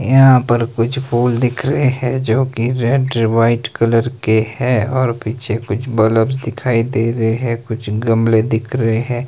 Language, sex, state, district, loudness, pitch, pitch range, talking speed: Hindi, male, Himachal Pradesh, Shimla, -16 LUFS, 115 Hz, 115-125 Hz, 170 wpm